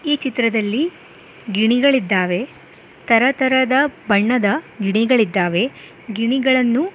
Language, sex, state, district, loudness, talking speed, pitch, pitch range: Kannada, female, Karnataka, Koppal, -17 LUFS, 60 wpm, 240 Hz, 210-265 Hz